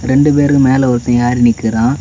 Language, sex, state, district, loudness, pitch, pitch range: Tamil, male, Tamil Nadu, Kanyakumari, -11 LUFS, 125 Hz, 120-135 Hz